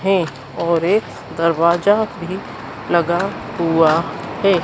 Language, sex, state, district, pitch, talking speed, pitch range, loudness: Hindi, female, Madhya Pradesh, Dhar, 170 Hz, 105 wpm, 165-190 Hz, -18 LUFS